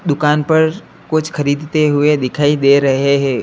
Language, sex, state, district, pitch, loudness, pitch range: Hindi, male, Uttar Pradesh, Lalitpur, 150 Hz, -14 LUFS, 140-155 Hz